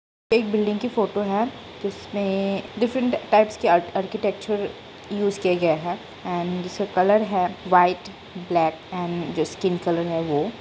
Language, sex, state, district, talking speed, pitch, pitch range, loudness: Hindi, female, Bihar, Saran, 145 wpm, 195 Hz, 175-210 Hz, -23 LUFS